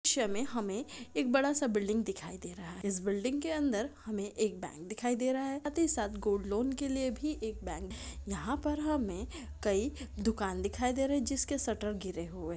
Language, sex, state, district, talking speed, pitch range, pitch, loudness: Hindi, female, Andhra Pradesh, Chittoor, 220 wpm, 200-275 Hz, 225 Hz, -35 LUFS